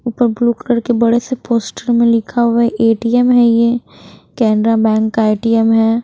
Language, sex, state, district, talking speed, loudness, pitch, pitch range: Hindi, female, Haryana, Rohtak, 180 wpm, -14 LUFS, 235 Hz, 225-240 Hz